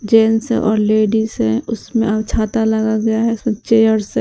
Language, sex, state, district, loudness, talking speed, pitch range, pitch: Hindi, female, Uttar Pradesh, Shamli, -16 LUFS, 185 wpm, 215-225 Hz, 220 Hz